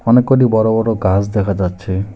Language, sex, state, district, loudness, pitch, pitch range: Bengali, male, West Bengal, Alipurduar, -15 LUFS, 105 Hz, 95-115 Hz